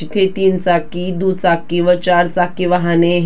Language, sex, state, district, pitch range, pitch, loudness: Marathi, female, Maharashtra, Dhule, 175-185 Hz, 180 Hz, -15 LUFS